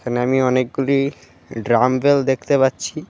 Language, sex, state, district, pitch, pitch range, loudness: Bengali, male, Tripura, West Tripura, 130 Hz, 125-140 Hz, -18 LUFS